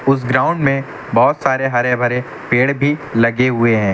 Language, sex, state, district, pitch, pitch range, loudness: Hindi, male, Uttar Pradesh, Lucknow, 130 Hz, 120-135 Hz, -16 LUFS